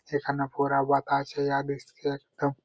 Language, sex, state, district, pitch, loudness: Bengali, male, West Bengal, Purulia, 140 Hz, -28 LUFS